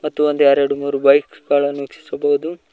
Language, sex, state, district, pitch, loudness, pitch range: Kannada, male, Karnataka, Koppal, 145 Hz, -17 LUFS, 140-150 Hz